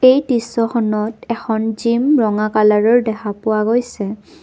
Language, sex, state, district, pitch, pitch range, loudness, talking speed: Assamese, female, Assam, Kamrup Metropolitan, 225 Hz, 215-240 Hz, -17 LUFS, 120 wpm